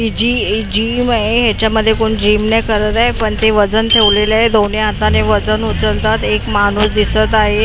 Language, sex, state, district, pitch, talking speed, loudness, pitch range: Marathi, female, Maharashtra, Mumbai Suburban, 215 Hz, 190 wpm, -13 LUFS, 210-225 Hz